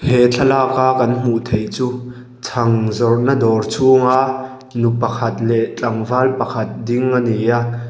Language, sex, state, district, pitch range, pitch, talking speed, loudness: Mizo, male, Mizoram, Aizawl, 115-130 Hz, 120 Hz, 150 wpm, -16 LUFS